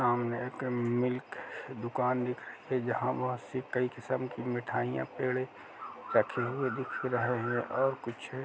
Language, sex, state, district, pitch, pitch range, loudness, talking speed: Hindi, male, Uttar Pradesh, Jalaun, 125 Hz, 120-130 Hz, -33 LUFS, 185 wpm